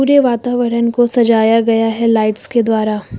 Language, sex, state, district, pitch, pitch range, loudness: Hindi, female, Uttar Pradesh, Lucknow, 230 Hz, 225-240 Hz, -13 LUFS